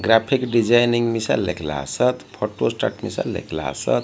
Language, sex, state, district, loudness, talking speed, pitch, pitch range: Odia, male, Odisha, Malkangiri, -21 LUFS, 150 wpm, 115 Hz, 80-120 Hz